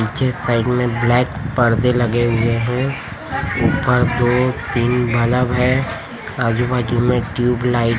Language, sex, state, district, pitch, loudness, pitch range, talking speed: Hindi, male, Chhattisgarh, Raipur, 120 Hz, -17 LUFS, 120-125 Hz, 130 wpm